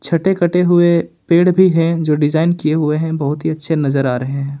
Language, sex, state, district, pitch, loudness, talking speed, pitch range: Hindi, male, Jharkhand, Ranchi, 160 Hz, -15 LUFS, 235 wpm, 150-175 Hz